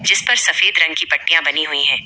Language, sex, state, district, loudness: Hindi, female, Uttar Pradesh, Shamli, -14 LUFS